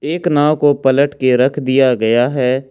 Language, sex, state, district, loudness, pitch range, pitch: Hindi, male, Jharkhand, Ranchi, -14 LUFS, 130-145 Hz, 135 Hz